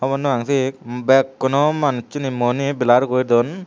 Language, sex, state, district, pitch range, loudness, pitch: Chakma, male, Tripura, Unakoti, 125-140 Hz, -18 LUFS, 135 Hz